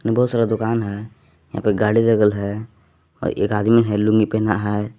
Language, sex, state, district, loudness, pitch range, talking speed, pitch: Hindi, male, Jharkhand, Palamu, -19 LUFS, 105-115 Hz, 190 wpm, 110 Hz